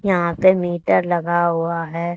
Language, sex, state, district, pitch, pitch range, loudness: Hindi, female, Haryana, Charkhi Dadri, 175 Hz, 170-175 Hz, -18 LUFS